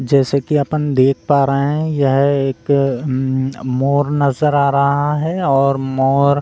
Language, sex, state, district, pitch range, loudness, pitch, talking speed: Hindi, male, Bihar, Gopalganj, 135-145 Hz, -16 LUFS, 140 Hz, 160 wpm